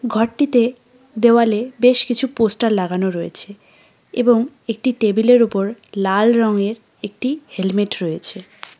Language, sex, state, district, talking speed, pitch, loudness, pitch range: Bengali, female, West Bengal, Cooch Behar, 115 wpm, 225 Hz, -17 LUFS, 205-245 Hz